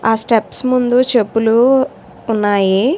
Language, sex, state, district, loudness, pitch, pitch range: Telugu, female, Telangana, Hyderabad, -14 LUFS, 230 Hz, 225-255 Hz